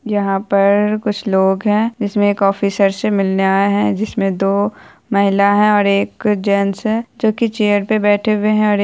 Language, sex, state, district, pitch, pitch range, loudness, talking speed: Hindi, female, Bihar, Saharsa, 205 Hz, 200-210 Hz, -15 LUFS, 205 wpm